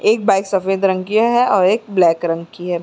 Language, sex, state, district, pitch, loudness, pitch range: Hindi, female, Uttar Pradesh, Muzaffarnagar, 195 Hz, -16 LUFS, 175-215 Hz